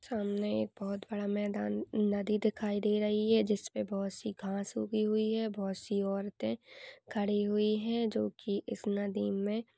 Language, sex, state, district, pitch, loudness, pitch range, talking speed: Hindi, female, Maharashtra, Dhule, 205 Hz, -34 LUFS, 200-215 Hz, 170 wpm